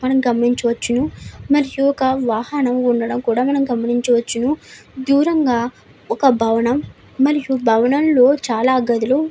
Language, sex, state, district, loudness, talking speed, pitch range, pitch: Telugu, female, Andhra Pradesh, Anantapur, -17 LUFS, 85 wpm, 240-275 Hz, 255 Hz